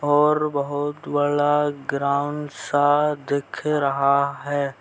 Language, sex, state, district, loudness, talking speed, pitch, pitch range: Hindi, male, Uttar Pradesh, Gorakhpur, -22 LUFS, 100 wpm, 145 Hz, 140-145 Hz